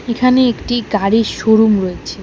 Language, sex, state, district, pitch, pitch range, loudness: Bengali, female, West Bengal, Alipurduar, 220 Hz, 205-240 Hz, -14 LUFS